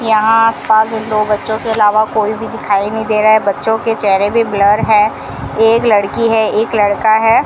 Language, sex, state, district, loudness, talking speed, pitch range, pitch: Hindi, female, Rajasthan, Bikaner, -12 LUFS, 215 wpm, 210-225 Hz, 215 Hz